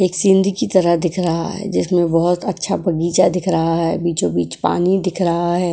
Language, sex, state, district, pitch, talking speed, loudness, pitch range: Hindi, female, Uttar Pradesh, Etah, 175 Hz, 200 wpm, -17 LUFS, 170-185 Hz